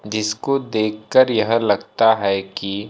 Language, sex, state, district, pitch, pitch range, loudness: Hindi, male, Madhya Pradesh, Bhopal, 110 Hz, 100-115 Hz, -19 LUFS